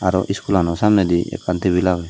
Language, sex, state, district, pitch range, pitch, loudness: Chakma, male, Tripura, Dhalai, 90-100 Hz, 90 Hz, -18 LUFS